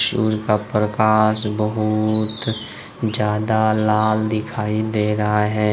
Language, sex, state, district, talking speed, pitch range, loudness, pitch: Hindi, male, Jharkhand, Ranchi, 105 wpm, 105-110 Hz, -19 LUFS, 110 Hz